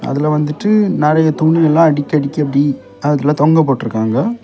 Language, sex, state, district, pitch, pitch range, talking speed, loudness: Tamil, male, Tamil Nadu, Kanyakumari, 150 Hz, 140-160 Hz, 150 wpm, -14 LUFS